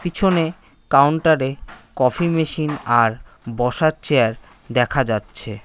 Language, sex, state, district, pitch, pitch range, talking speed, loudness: Bengali, male, West Bengal, Cooch Behar, 135 Hz, 115-160 Hz, 105 wpm, -19 LUFS